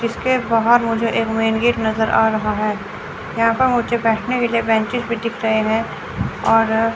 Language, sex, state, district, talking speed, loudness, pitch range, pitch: Hindi, female, Chandigarh, Chandigarh, 190 wpm, -18 LUFS, 220-235 Hz, 225 Hz